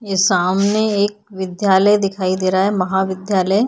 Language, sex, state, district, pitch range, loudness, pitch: Hindi, female, Uttar Pradesh, Budaun, 190-205 Hz, -17 LUFS, 190 Hz